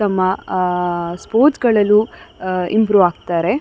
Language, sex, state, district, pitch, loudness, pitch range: Kannada, female, Karnataka, Dakshina Kannada, 185 Hz, -16 LUFS, 180-210 Hz